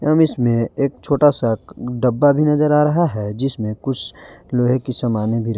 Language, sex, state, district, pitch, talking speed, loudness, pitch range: Hindi, male, Jharkhand, Garhwa, 125 Hz, 195 wpm, -18 LUFS, 115-145 Hz